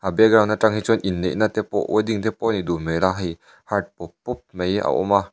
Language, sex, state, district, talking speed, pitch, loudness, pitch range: Mizo, male, Mizoram, Aizawl, 260 wpm, 105 Hz, -21 LUFS, 95-110 Hz